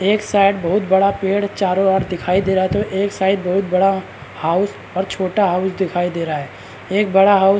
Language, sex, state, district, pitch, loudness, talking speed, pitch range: Hindi, male, Bihar, Madhepura, 190 Hz, -17 LUFS, 220 wpm, 180-200 Hz